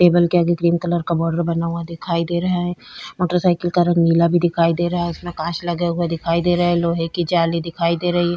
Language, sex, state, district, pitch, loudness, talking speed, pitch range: Hindi, female, Bihar, Vaishali, 170 Hz, -19 LUFS, 265 wpm, 170-175 Hz